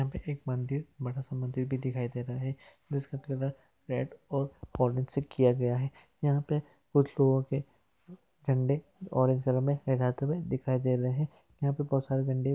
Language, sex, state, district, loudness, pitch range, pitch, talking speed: Hindi, male, Chhattisgarh, Raigarh, -31 LUFS, 130-140 Hz, 135 Hz, 200 wpm